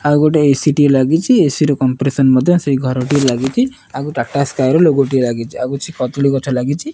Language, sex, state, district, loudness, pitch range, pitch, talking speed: Odia, male, Odisha, Nuapada, -14 LUFS, 130-150 Hz, 140 Hz, 205 wpm